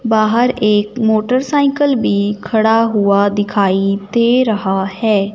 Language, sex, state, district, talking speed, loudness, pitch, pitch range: Hindi, male, Punjab, Fazilka, 110 wpm, -14 LUFS, 215 Hz, 200-235 Hz